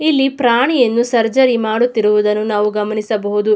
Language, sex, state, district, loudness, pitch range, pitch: Kannada, female, Karnataka, Mysore, -15 LUFS, 210-245 Hz, 225 Hz